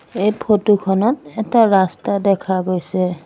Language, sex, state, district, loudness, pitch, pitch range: Assamese, female, Assam, Sonitpur, -17 LUFS, 195 Hz, 185-215 Hz